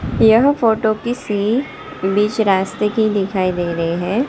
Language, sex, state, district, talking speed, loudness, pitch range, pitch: Hindi, female, Gujarat, Gandhinagar, 140 wpm, -17 LUFS, 190-225 Hz, 210 Hz